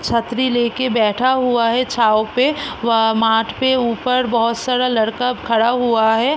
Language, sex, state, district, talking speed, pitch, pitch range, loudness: Hindi, female, Bihar, East Champaran, 170 wpm, 235 Hz, 225-250 Hz, -17 LUFS